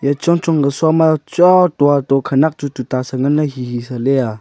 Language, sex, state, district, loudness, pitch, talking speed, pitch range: Wancho, male, Arunachal Pradesh, Longding, -15 LUFS, 140 Hz, 245 wpm, 130-160 Hz